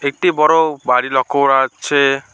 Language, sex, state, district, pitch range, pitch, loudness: Bengali, male, West Bengal, Alipurduar, 135-150 Hz, 140 Hz, -14 LUFS